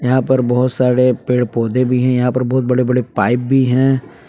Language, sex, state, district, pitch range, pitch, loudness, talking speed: Hindi, male, Jharkhand, Palamu, 125-130 Hz, 125 Hz, -15 LUFS, 225 wpm